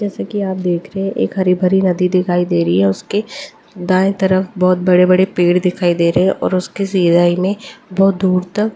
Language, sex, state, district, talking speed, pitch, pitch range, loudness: Hindi, female, Delhi, New Delhi, 210 wpm, 185 Hz, 180-195 Hz, -15 LUFS